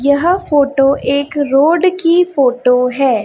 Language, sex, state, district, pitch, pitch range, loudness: Hindi, female, Chhattisgarh, Raipur, 280 Hz, 270-330 Hz, -13 LUFS